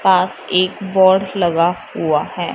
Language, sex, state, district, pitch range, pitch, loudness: Hindi, male, Punjab, Fazilka, 175-190 Hz, 185 Hz, -16 LUFS